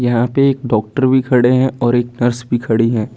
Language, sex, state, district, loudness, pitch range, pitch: Hindi, male, Chandigarh, Chandigarh, -15 LUFS, 120-130 Hz, 120 Hz